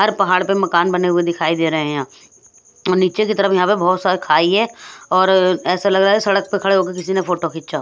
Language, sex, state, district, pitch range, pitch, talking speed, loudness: Hindi, female, Punjab, Pathankot, 175-195 Hz, 185 Hz, 260 wpm, -16 LUFS